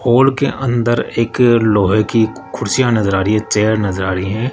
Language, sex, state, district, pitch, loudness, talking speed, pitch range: Hindi, male, Rajasthan, Jaipur, 110 Hz, -15 LUFS, 210 wpm, 105-120 Hz